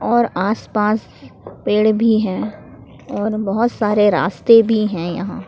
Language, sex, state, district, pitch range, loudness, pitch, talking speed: Hindi, female, Jharkhand, Palamu, 205-225 Hz, -17 LUFS, 215 Hz, 140 wpm